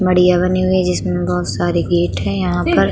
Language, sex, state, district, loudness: Hindi, female, Uttar Pradesh, Budaun, -16 LUFS